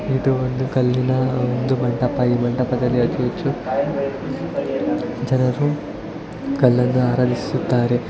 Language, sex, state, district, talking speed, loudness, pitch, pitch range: Kannada, male, Karnataka, Chamarajanagar, 95 wpm, -20 LUFS, 125 Hz, 125-135 Hz